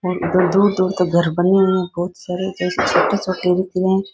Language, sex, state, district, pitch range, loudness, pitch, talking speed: Rajasthani, female, Rajasthan, Nagaur, 180-190 Hz, -18 LUFS, 185 Hz, 205 wpm